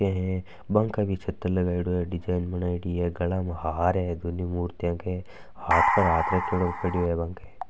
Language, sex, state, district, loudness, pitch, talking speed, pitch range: Marwari, male, Rajasthan, Nagaur, -27 LUFS, 90 Hz, 170 wpm, 85-95 Hz